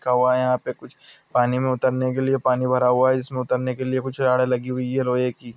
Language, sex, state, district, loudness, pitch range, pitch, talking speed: Hindi, male, Andhra Pradesh, Anantapur, -21 LUFS, 125-130 Hz, 125 Hz, 245 wpm